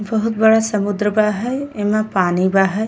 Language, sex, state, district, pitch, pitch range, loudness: Bhojpuri, female, Uttar Pradesh, Ghazipur, 215 Hz, 205-220 Hz, -17 LUFS